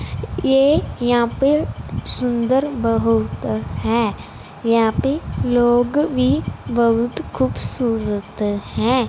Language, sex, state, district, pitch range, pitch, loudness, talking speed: Hindi, female, Punjab, Fazilka, 210-255 Hz, 235 Hz, -19 LUFS, 85 wpm